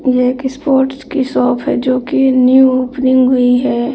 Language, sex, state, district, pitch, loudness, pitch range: Hindi, female, Bihar, Bhagalpur, 255 Hz, -12 LUFS, 255-265 Hz